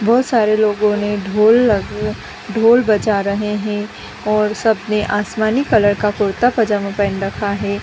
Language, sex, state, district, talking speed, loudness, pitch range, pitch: Hindi, female, Bihar, Gopalganj, 175 wpm, -16 LUFS, 205-220 Hz, 210 Hz